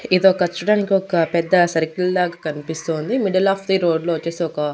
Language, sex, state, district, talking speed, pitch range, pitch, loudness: Telugu, female, Andhra Pradesh, Annamaya, 150 wpm, 165-190 Hz, 175 Hz, -19 LUFS